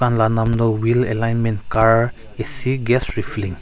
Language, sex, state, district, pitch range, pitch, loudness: Nagamese, male, Nagaland, Kohima, 110-120 Hz, 115 Hz, -17 LUFS